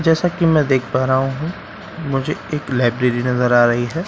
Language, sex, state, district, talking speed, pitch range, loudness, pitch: Hindi, male, Bihar, Katihar, 220 wpm, 125-160 Hz, -18 LUFS, 135 Hz